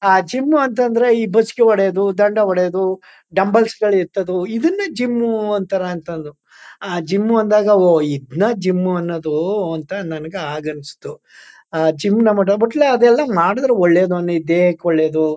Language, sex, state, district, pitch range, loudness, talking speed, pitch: Kannada, male, Karnataka, Chamarajanagar, 170-225 Hz, -16 LUFS, 115 wpm, 195 Hz